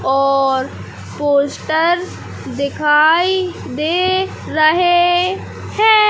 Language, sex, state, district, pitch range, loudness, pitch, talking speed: Hindi, male, Madhya Pradesh, Katni, 285-365 Hz, -15 LUFS, 325 Hz, 60 wpm